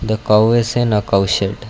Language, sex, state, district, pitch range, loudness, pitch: English, male, Karnataka, Bangalore, 100-115 Hz, -15 LUFS, 110 Hz